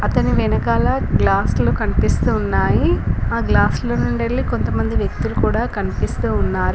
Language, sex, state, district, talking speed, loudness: Telugu, female, Telangana, Komaram Bheem, 125 wpm, -18 LUFS